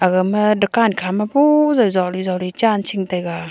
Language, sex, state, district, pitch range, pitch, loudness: Wancho, female, Arunachal Pradesh, Longding, 185-225 Hz, 195 Hz, -17 LUFS